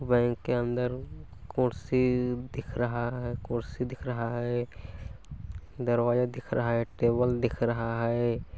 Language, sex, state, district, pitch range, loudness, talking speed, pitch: Hindi, male, Chhattisgarh, Balrampur, 115-125 Hz, -30 LUFS, 140 wpm, 120 Hz